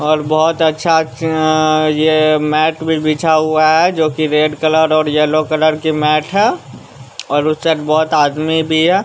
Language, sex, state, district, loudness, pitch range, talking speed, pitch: Hindi, male, Bihar, West Champaran, -13 LUFS, 155-160 Hz, 170 wpm, 155 Hz